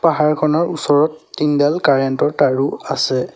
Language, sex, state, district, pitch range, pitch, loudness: Assamese, male, Assam, Sonitpur, 140-155 Hz, 150 Hz, -16 LUFS